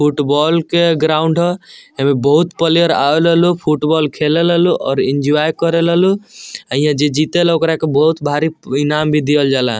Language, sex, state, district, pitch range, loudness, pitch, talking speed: Bhojpuri, male, Bihar, Muzaffarpur, 145-170 Hz, -14 LUFS, 155 Hz, 210 wpm